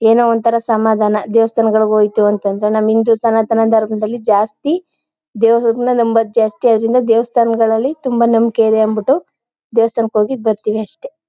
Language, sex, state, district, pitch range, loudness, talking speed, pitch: Kannada, female, Karnataka, Chamarajanagar, 220-235 Hz, -14 LUFS, 120 wpm, 225 Hz